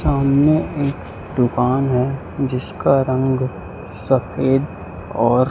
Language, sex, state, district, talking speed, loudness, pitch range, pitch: Hindi, male, Chhattisgarh, Raipur, 85 wpm, -19 LUFS, 120-135 Hz, 130 Hz